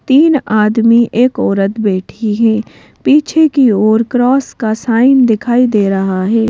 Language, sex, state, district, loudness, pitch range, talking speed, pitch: Hindi, female, Madhya Pradesh, Bhopal, -11 LUFS, 215-255 Hz, 150 wpm, 225 Hz